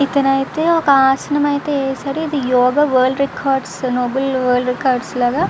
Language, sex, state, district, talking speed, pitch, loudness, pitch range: Telugu, female, Andhra Pradesh, Visakhapatnam, 140 wpm, 270 Hz, -16 LUFS, 255-285 Hz